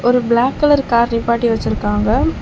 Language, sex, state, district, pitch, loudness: Tamil, female, Tamil Nadu, Chennai, 235 Hz, -15 LUFS